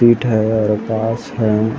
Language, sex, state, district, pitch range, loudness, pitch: Chhattisgarhi, male, Chhattisgarh, Rajnandgaon, 110-115 Hz, -17 LUFS, 110 Hz